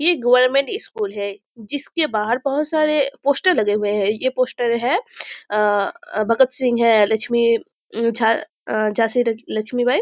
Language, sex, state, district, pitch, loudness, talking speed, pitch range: Hindi, female, Bihar, Muzaffarpur, 235 Hz, -19 LUFS, 140 wpm, 215-275 Hz